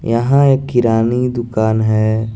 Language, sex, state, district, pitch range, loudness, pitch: Hindi, male, Jharkhand, Garhwa, 110-125 Hz, -14 LUFS, 115 Hz